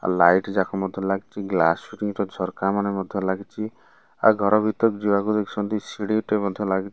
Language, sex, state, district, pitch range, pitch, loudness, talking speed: Odia, male, Odisha, Malkangiri, 95-105 Hz, 100 Hz, -23 LUFS, 190 wpm